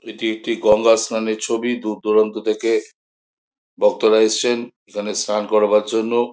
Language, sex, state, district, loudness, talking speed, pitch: Bengali, male, West Bengal, Jhargram, -18 LUFS, 135 wpm, 115 Hz